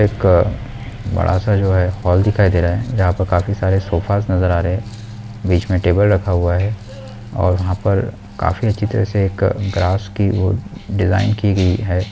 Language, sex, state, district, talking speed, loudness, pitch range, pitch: Hindi, male, Bihar, Vaishali, 195 wpm, -17 LUFS, 90-105 Hz, 100 Hz